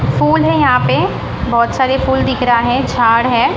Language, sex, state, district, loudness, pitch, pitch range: Hindi, female, Maharashtra, Mumbai Suburban, -13 LUFS, 235 Hz, 150-240 Hz